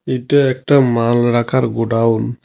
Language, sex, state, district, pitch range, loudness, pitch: Bengali, male, West Bengal, Cooch Behar, 115-130 Hz, -15 LUFS, 120 Hz